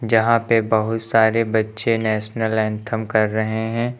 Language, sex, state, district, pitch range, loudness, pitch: Hindi, male, Uttar Pradesh, Lucknow, 110-115 Hz, -19 LUFS, 110 Hz